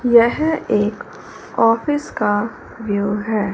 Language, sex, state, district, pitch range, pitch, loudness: Hindi, female, Punjab, Fazilka, 205-240 Hz, 225 Hz, -19 LUFS